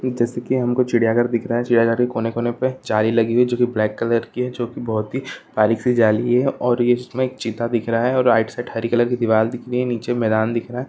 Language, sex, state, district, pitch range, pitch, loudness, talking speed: Hindi, male, Chhattisgarh, Bilaspur, 115-125 Hz, 120 Hz, -20 LUFS, 300 wpm